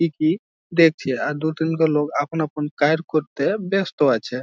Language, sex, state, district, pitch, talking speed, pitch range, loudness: Bengali, male, West Bengal, Jhargram, 155 Hz, 160 wpm, 150-165 Hz, -21 LUFS